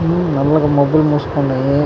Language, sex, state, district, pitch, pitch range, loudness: Telugu, male, Andhra Pradesh, Chittoor, 145 Hz, 140-155 Hz, -15 LUFS